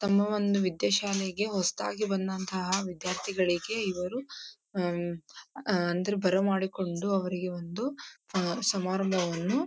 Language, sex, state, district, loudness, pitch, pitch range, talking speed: Kannada, female, Karnataka, Dharwad, -30 LUFS, 190 Hz, 180-200 Hz, 100 wpm